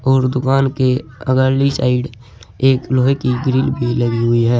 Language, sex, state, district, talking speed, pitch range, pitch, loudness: Hindi, male, Uttar Pradesh, Saharanpur, 170 wpm, 120-130 Hz, 130 Hz, -16 LUFS